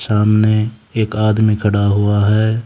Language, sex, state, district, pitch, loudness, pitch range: Hindi, male, Haryana, Charkhi Dadri, 110 Hz, -15 LUFS, 105-110 Hz